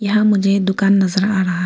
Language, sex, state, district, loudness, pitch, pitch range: Hindi, female, Arunachal Pradesh, Lower Dibang Valley, -15 LUFS, 195 Hz, 190-205 Hz